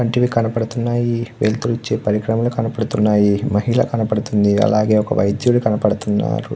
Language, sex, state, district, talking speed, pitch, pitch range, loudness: Telugu, male, Andhra Pradesh, Krishna, 110 wpm, 110 Hz, 105-115 Hz, -18 LUFS